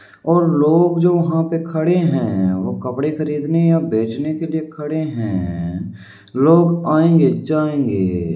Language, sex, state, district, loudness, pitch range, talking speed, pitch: Hindi, male, Uttar Pradesh, Varanasi, -17 LUFS, 110-165 Hz, 145 wpm, 155 Hz